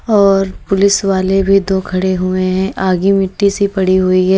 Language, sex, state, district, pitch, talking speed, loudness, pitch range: Hindi, female, Uttar Pradesh, Lalitpur, 190 Hz, 190 wpm, -13 LUFS, 185-195 Hz